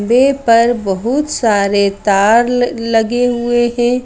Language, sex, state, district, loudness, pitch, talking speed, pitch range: Hindi, female, Madhya Pradesh, Bhopal, -13 LUFS, 235 Hz, 135 wpm, 215-245 Hz